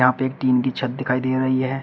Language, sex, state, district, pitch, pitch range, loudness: Hindi, male, Uttar Pradesh, Shamli, 130 Hz, 125-130 Hz, -21 LUFS